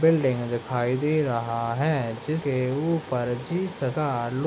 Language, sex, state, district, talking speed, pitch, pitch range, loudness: Hindi, male, Uttarakhand, Tehri Garhwal, 135 wpm, 135 Hz, 120-155 Hz, -26 LUFS